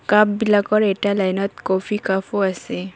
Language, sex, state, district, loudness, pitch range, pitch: Assamese, female, Assam, Kamrup Metropolitan, -19 LUFS, 190-210 Hz, 200 Hz